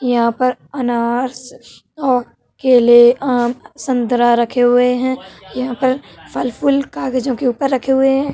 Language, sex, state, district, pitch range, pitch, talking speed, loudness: Hindi, female, Uttar Pradesh, Hamirpur, 245-265 Hz, 255 Hz, 145 wpm, -15 LUFS